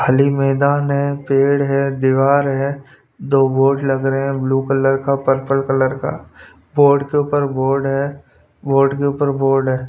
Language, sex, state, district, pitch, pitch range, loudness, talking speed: Hindi, male, Punjab, Pathankot, 135 Hz, 135-140 Hz, -16 LUFS, 170 wpm